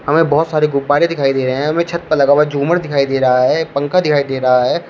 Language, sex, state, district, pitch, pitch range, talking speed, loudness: Hindi, male, Uttar Pradesh, Shamli, 145 Hz, 135-160 Hz, 280 wpm, -14 LUFS